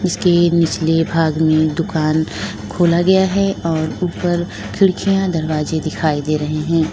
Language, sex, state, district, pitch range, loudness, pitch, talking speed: Hindi, female, Uttar Pradesh, Lalitpur, 155-175 Hz, -17 LUFS, 165 Hz, 140 wpm